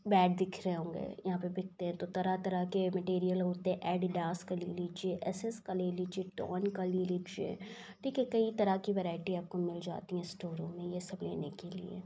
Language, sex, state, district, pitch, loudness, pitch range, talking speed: Hindi, female, Bihar, Saharsa, 185 Hz, -36 LUFS, 180-190 Hz, 210 wpm